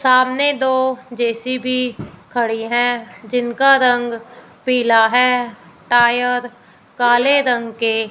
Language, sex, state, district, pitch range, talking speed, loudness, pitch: Hindi, female, Punjab, Fazilka, 235-255 Hz, 95 wpm, -16 LUFS, 245 Hz